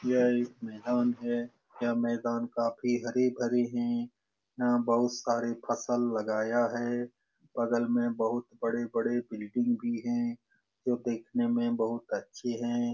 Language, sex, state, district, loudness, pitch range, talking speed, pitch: Hindi, male, Bihar, Lakhisarai, -31 LUFS, 115-120 Hz, 130 wpm, 120 Hz